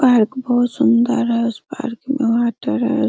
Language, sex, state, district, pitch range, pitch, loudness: Hindi, female, Bihar, Araria, 235-255 Hz, 240 Hz, -18 LUFS